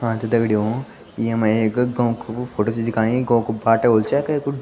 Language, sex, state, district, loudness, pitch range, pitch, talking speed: Garhwali, male, Uttarakhand, Tehri Garhwal, -20 LUFS, 110-125 Hz, 115 Hz, 220 wpm